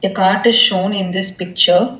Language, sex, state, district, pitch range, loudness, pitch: English, female, Telangana, Hyderabad, 185-200 Hz, -13 LUFS, 195 Hz